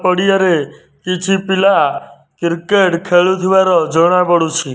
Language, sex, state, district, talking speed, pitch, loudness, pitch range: Odia, male, Odisha, Nuapada, 100 wpm, 180 Hz, -13 LUFS, 170-190 Hz